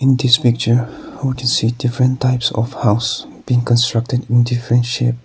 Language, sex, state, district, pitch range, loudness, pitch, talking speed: English, male, Nagaland, Kohima, 120-125 Hz, -16 LUFS, 120 Hz, 170 wpm